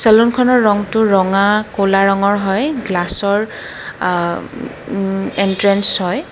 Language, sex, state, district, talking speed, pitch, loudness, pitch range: Assamese, female, Assam, Kamrup Metropolitan, 105 wpm, 200 Hz, -14 LUFS, 195-220 Hz